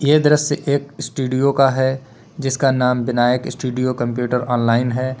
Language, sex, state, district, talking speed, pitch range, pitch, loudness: Hindi, male, Uttar Pradesh, Lalitpur, 150 wpm, 125-140 Hz, 130 Hz, -18 LUFS